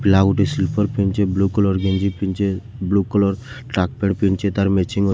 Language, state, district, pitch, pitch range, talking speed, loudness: Sambalpuri, Odisha, Sambalpur, 100 Hz, 95-100 Hz, 185 wpm, -19 LUFS